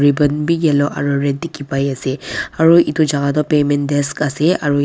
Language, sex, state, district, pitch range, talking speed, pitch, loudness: Nagamese, female, Nagaland, Dimapur, 140-155 Hz, 200 wpm, 145 Hz, -16 LUFS